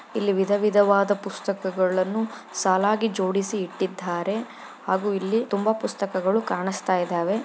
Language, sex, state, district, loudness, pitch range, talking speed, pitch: Kannada, female, Karnataka, Chamarajanagar, -24 LUFS, 190-205 Hz, 90 wpm, 200 Hz